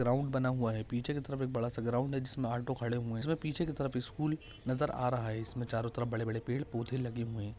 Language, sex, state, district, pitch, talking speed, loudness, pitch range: Hindi, male, Maharashtra, Pune, 125 Hz, 270 wpm, -36 LUFS, 115-135 Hz